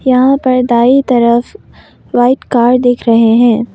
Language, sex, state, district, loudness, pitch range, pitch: Hindi, female, Arunachal Pradesh, Longding, -10 LUFS, 235-255 Hz, 245 Hz